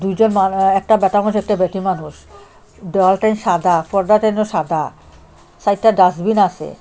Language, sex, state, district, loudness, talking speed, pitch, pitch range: Bengali, female, Assam, Hailakandi, -16 LUFS, 140 wpm, 195 Hz, 175-210 Hz